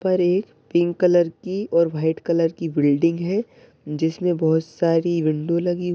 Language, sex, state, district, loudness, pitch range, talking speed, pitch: Hindi, male, Uttar Pradesh, Ghazipur, -21 LUFS, 160-180 Hz, 160 wpm, 170 Hz